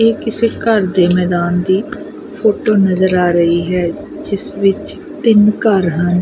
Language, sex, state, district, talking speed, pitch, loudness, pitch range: Punjabi, female, Punjab, Kapurthala, 155 wpm, 195 Hz, -14 LUFS, 180-220 Hz